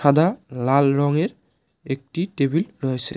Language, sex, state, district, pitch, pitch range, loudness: Bengali, male, West Bengal, Cooch Behar, 145 Hz, 135-170 Hz, -22 LUFS